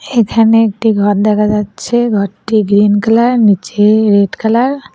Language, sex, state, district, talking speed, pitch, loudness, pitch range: Bengali, female, West Bengal, Cooch Behar, 145 wpm, 215 Hz, -11 LUFS, 205-230 Hz